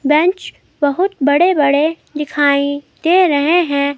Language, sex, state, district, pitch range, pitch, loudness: Hindi, female, Himachal Pradesh, Shimla, 285-345 Hz, 295 Hz, -14 LUFS